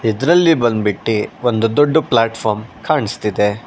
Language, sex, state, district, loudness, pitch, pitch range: Kannada, male, Karnataka, Bangalore, -16 LUFS, 115 Hz, 110-135 Hz